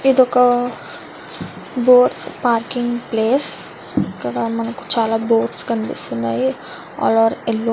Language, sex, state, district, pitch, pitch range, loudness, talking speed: Telugu, female, Andhra Pradesh, Visakhapatnam, 235 Hz, 225-250 Hz, -18 LUFS, 115 wpm